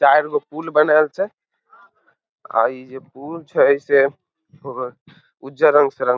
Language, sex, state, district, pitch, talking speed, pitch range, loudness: Maithili, male, Bihar, Samastipur, 145 Hz, 155 wpm, 135-165 Hz, -18 LUFS